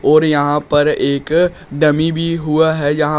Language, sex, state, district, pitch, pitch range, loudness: Hindi, male, Uttar Pradesh, Shamli, 150 Hz, 145-160 Hz, -15 LUFS